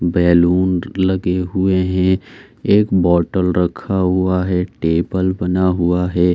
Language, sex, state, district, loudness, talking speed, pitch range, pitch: Hindi, male, Bihar, Saran, -16 LUFS, 125 wpm, 90-95 Hz, 90 Hz